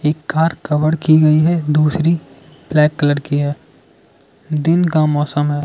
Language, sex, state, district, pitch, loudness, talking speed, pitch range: Hindi, male, Arunachal Pradesh, Lower Dibang Valley, 150 Hz, -15 LUFS, 160 wpm, 145-160 Hz